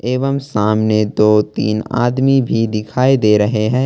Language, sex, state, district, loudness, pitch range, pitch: Hindi, male, Jharkhand, Ranchi, -15 LUFS, 105-130 Hz, 110 Hz